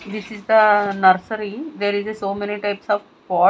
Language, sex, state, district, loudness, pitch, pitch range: English, female, Punjab, Kapurthala, -19 LUFS, 205 Hz, 200-215 Hz